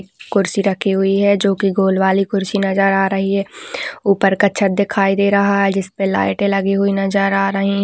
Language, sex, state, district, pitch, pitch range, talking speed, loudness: Hindi, female, Uttar Pradesh, Budaun, 195 Hz, 195-200 Hz, 205 wpm, -16 LUFS